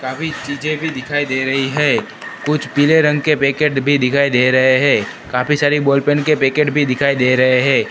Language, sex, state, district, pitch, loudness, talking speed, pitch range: Hindi, male, Gujarat, Gandhinagar, 140 Hz, -15 LUFS, 210 wpm, 130-150 Hz